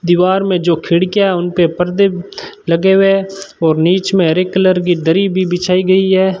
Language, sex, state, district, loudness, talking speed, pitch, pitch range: Hindi, male, Rajasthan, Bikaner, -13 LUFS, 185 wpm, 185 Hz, 175-190 Hz